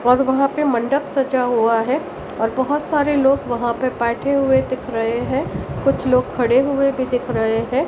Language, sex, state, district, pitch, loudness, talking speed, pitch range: Hindi, female, Maharashtra, Mumbai Suburban, 260 Hz, -19 LUFS, 200 wpm, 240-275 Hz